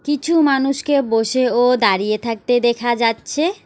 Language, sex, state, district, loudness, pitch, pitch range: Bengali, female, West Bengal, Alipurduar, -17 LUFS, 245 Hz, 230-285 Hz